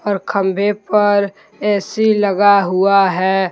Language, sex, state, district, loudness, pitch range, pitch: Hindi, male, Jharkhand, Deoghar, -15 LUFS, 195-205 Hz, 200 Hz